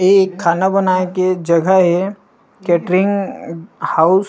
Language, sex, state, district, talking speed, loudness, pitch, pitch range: Chhattisgarhi, male, Chhattisgarh, Rajnandgaon, 110 wpm, -15 LUFS, 185 Hz, 175-195 Hz